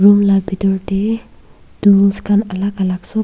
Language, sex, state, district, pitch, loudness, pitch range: Nagamese, female, Nagaland, Kohima, 200 Hz, -15 LUFS, 195-205 Hz